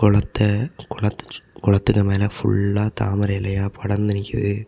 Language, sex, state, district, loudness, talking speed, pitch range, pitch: Tamil, male, Tamil Nadu, Kanyakumari, -21 LUFS, 130 wpm, 100-110 Hz, 105 Hz